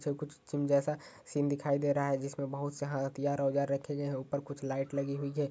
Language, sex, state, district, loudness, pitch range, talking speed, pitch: Hindi, male, Uttar Pradesh, Ghazipur, -34 LUFS, 140-145 Hz, 240 wpm, 140 Hz